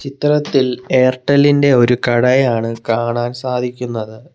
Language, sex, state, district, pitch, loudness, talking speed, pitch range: Malayalam, male, Kerala, Kollam, 125 Hz, -15 LUFS, 85 wpm, 120-135 Hz